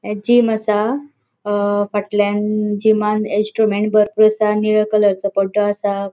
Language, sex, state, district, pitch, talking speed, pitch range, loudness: Konkani, female, Goa, North and South Goa, 210 Hz, 125 wpm, 205-215 Hz, -17 LUFS